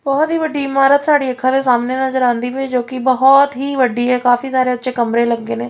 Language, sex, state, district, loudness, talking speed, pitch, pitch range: Punjabi, female, Punjab, Fazilka, -15 LUFS, 240 wpm, 260 Hz, 245-275 Hz